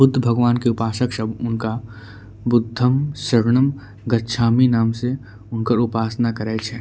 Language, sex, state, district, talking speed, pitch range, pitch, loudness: Angika, male, Bihar, Bhagalpur, 130 wpm, 110-125 Hz, 115 Hz, -20 LUFS